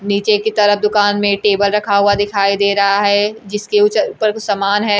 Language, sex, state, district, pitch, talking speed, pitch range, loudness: Hindi, female, Bihar, Kaimur, 205 Hz, 215 wpm, 200-210 Hz, -14 LUFS